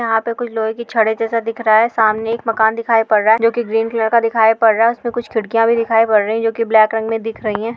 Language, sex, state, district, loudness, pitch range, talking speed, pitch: Bhojpuri, female, Bihar, Saran, -15 LUFS, 220-230 Hz, 325 wpm, 225 Hz